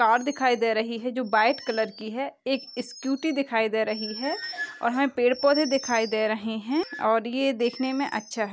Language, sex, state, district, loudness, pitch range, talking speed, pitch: Hindi, female, Chhattisgarh, Raigarh, -26 LUFS, 225-275 Hz, 210 wpm, 245 Hz